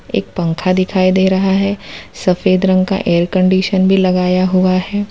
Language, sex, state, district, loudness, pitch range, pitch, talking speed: Hindi, female, Gujarat, Valsad, -14 LUFS, 185-190 Hz, 185 Hz, 175 wpm